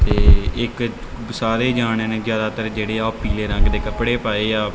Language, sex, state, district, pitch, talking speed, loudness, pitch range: Punjabi, male, Punjab, Kapurthala, 110 Hz, 190 wpm, -20 LUFS, 105-115 Hz